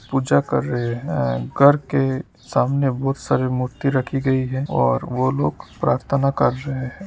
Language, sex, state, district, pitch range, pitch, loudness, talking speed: Hindi, male, Uttar Pradesh, Deoria, 120-135 Hz, 130 Hz, -20 LUFS, 160 wpm